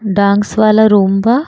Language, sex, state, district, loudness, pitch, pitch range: Bhojpuri, female, Uttar Pradesh, Gorakhpur, -11 LUFS, 210 Hz, 200-220 Hz